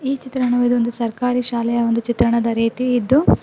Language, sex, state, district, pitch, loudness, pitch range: Kannada, female, Karnataka, Dakshina Kannada, 240 Hz, -18 LUFS, 235-250 Hz